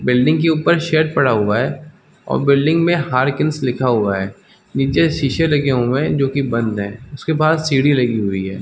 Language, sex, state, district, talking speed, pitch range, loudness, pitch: Hindi, male, Chhattisgarh, Balrampur, 200 wpm, 125-155 Hz, -17 LUFS, 140 Hz